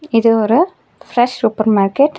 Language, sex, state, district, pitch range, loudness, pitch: Tamil, female, Tamil Nadu, Nilgiris, 220-275 Hz, -15 LUFS, 230 Hz